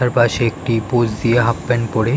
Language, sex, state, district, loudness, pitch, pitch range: Bengali, male, West Bengal, North 24 Parganas, -17 LUFS, 120 Hz, 115-125 Hz